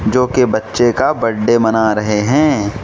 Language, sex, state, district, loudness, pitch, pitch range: Hindi, male, Mizoram, Aizawl, -14 LUFS, 110 Hz, 105-125 Hz